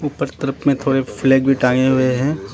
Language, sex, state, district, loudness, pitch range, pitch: Hindi, male, Arunachal Pradesh, Lower Dibang Valley, -17 LUFS, 130-140 Hz, 135 Hz